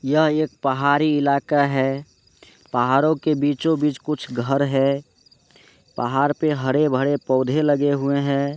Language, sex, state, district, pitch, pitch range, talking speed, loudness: Hindi, male, Rajasthan, Nagaur, 140 Hz, 135-150 Hz, 140 wpm, -20 LUFS